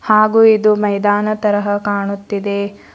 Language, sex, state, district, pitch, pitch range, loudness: Kannada, female, Karnataka, Bidar, 205 Hz, 200-215 Hz, -15 LUFS